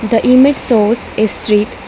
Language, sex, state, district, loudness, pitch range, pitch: English, female, Arunachal Pradesh, Lower Dibang Valley, -12 LUFS, 215-250 Hz, 225 Hz